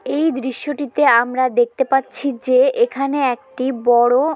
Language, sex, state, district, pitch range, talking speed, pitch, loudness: Bengali, female, West Bengal, Malda, 245-275 Hz, 125 wpm, 260 Hz, -17 LUFS